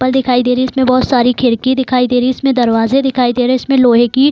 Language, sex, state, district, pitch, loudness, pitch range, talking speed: Hindi, female, Bihar, Darbhanga, 255 Hz, -12 LUFS, 245-260 Hz, 320 wpm